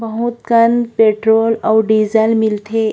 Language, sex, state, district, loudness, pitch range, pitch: Chhattisgarhi, female, Chhattisgarh, Korba, -14 LUFS, 220-230 Hz, 225 Hz